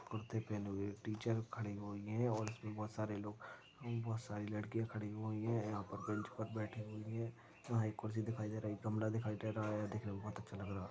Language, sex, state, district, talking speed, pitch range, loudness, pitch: Hindi, male, Chhattisgarh, Balrampur, 230 wpm, 105-110 Hz, -43 LUFS, 110 Hz